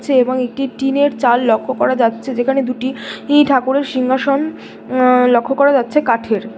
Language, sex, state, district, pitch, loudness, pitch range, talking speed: Bengali, female, West Bengal, Jhargram, 260 Hz, -15 LUFS, 245-275 Hz, 125 wpm